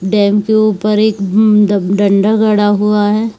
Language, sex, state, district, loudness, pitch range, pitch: Hindi, female, Jharkhand, Jamtara, -11 LUFS, 205-215 Hz, 210 Hz